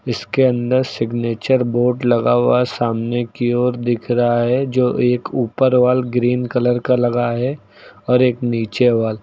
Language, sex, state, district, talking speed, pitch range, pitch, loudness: Hindi, male, Uttar Pradesh, Lucknow, 170 wpm, 120-125 Hz, 120 Hz, -17 LUFS